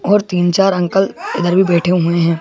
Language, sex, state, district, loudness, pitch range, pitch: Hindi, male, Madhya Pradesh, Bhopal, -14 LUFS, 170-195 Hz, 180 Hz